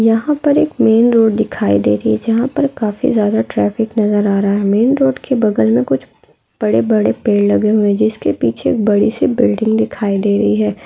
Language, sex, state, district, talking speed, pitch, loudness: Hindi, female, Bihar, Araria, 220 wpm, 215 Hz, -14 LUFS